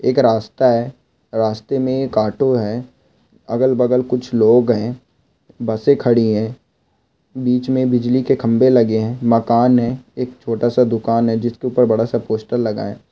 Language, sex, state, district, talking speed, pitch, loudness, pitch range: Hindi, male, Goa, North and South Goa, 175 wpm, 120 Hz, -17 LUFS, 115-125 Hz